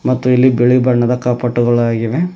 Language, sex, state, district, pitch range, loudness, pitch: Kannada, male, Karnataka, Bidar, 120-125 Hz, -13 LUFS, 125 Hz